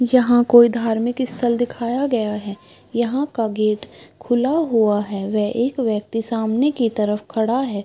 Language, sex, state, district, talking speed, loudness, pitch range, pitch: Hindi, female, Bihar, Bhagalpur, 160 wpm, -19 LUFS, 215-245 Hz, 235 Hz